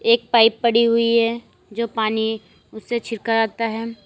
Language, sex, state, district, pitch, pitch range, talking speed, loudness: Hindi, female, Uttar Pradesh, Lalitpur, 230 Hz, 225-230 Hz, 165 wpm, -19 LUFS